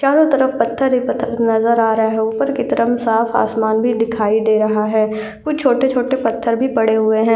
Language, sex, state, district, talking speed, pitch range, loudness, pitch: Hindi, female, Uttarakhand, Uttarkashi, 220 wpm, 220-250 Hz, -16 LUFS, 225 Hz